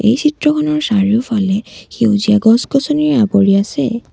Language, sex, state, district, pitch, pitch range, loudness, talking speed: Assamese, female, Assam, Sonitpur, 230 Hz, 210-295 Hz, -14 LUFS, 100 wpm